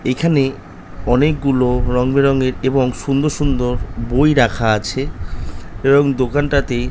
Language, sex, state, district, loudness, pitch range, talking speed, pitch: Bengali, male, West Bengal, North 24 Parganas, -16 LUFS, 120-140 Hz, 105 wpm, 130 Hz